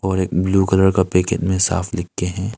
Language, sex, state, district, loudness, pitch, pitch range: Hindi, male, Arunachal Pradesh, Longding, -18 LUFS, 95 Hz, 90-95 Hz